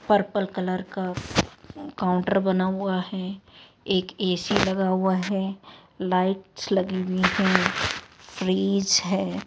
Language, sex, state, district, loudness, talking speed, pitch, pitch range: Hindi, female, Rajasthan, Jaipur, -25 LUFS, 115 wpm, 190 Hz, 185-195 Hz